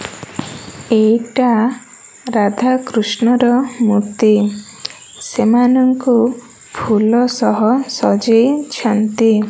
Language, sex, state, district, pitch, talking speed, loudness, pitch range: Odia, female, Odisha, Malkangiri, 235 Hz, 40 wpm, -14 LUFS, 215-250 Hz